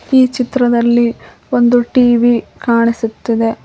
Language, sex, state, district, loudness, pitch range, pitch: Kannada, female, Karnataka, Koppal, -13 LUFS, 230-245 Hz, 240 Hz